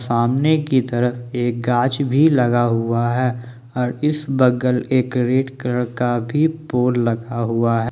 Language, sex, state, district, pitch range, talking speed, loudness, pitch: Hindi, male, Jharkhand, Ranchi, 120-130 Hz, 160 wpm, -19 LUFS, 125 Hz